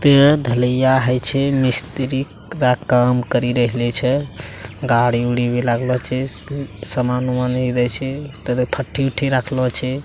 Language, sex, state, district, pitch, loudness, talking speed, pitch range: Hindi, male, Bihar, Araria, 125 Hz, -18 LUFS, 150 wpm, 125-135 Hz